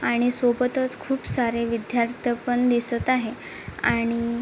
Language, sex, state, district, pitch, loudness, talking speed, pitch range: Marathi, female, Maharashtra, Chandrapur, 240 Hz, -24 LUFS, 135 wpm, 235-250 Hz